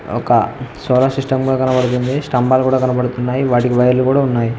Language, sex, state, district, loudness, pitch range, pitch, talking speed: Telugu, male, Telangana, Mahabubabad, -15 LUFS, 125-130 Hz, 125 Hz, 155 wpm